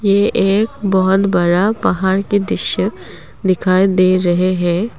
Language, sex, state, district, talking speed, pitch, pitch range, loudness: Hindi, female, Assam, Kamrup Metropolitan, 130 wpm, 190 Hz, 185-200 Hz, -14 LUFS